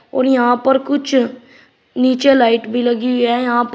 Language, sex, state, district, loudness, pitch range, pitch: Hindi, male, Uttar Pradesh, Shamli, -15 LUFS, 240-265 Hz, 250 Hz